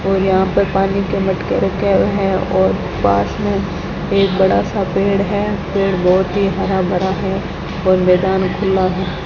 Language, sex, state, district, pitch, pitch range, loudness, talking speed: Hindi, female, Rajasthan, Bikaner, 190 Hz, 185-195 Hz, -16 LUFS, 175 wpm